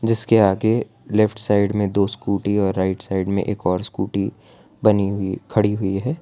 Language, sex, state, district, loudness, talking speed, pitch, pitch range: Hindi, male, Gujarat, Valsad, -20 LUFS, 185 wpm, 100 Hz, 95-110 Hz